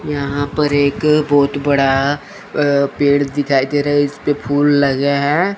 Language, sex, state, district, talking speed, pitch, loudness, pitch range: Hindi, male, Chandigarh, Chandigarh, 160 wpm, 145 Hz, -15 LUFS, 140-145 Hz